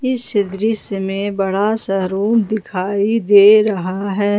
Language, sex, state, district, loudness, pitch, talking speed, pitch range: Hindi, female, Jharkhand, Ranchi, -16 LUFS, 205 Hz, 135 wpm, 195-215 Hz